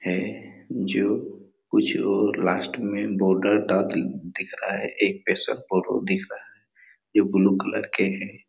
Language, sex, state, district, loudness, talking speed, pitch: Hindi, male, Chhattisgarh, Raigarh, -24 LUFS, 165 wpm, 100 Hz